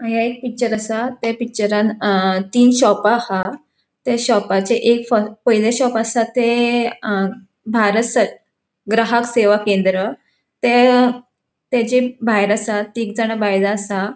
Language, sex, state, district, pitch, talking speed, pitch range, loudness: Konkani, female, Goa, North and South Goa, 225 Hz, 125 wpm, 210-240 Hz, -17 LUFS